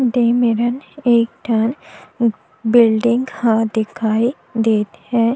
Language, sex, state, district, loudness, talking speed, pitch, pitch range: Chhattisgarhi, female, Chhattisgarh, Jashpur, -17 LUFS, 100 wpm, 230 Hz, 225-240 Hz